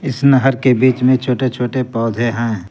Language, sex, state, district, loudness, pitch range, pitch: Hindi, male, Jharkhand, Garhwa, -15 LUFS, 120-130 Hz, 125 Hz